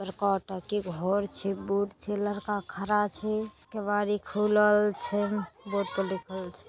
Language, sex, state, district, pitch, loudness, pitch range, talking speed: Maithili, female, Bihar, Saharsa, 205 Hz, -29 LUFS, 195-210 Hz, 135 wpm